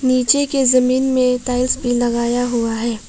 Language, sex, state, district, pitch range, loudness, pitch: Hindi, female, Arunachal Pradesh, Papum Pare, 240-255 Hz, -16 LUFS, 250 Hz